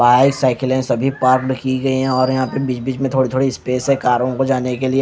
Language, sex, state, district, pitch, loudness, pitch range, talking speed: Hindi, male, Punjab, Kapurthala, 130 Hz, -17 LUFS, 130-135 Hz, 250 wpm